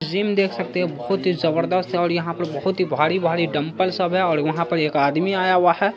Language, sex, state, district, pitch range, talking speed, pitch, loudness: Hindi, male, Bihar, Saharsa, 165-185 Hz, 220 wpm, 175 Hz, -21 LUFS